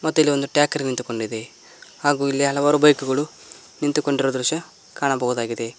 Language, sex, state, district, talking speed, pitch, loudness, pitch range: Kannada, male, Karnataka, Koppal, 125 wpm, 140 Hz, -21 LUFS, 125-145 Hz